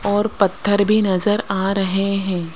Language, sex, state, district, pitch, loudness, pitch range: Hindi, female, Rajasthan, Jaipur, 200 Hz, -18 LUFS, 190-205 Hz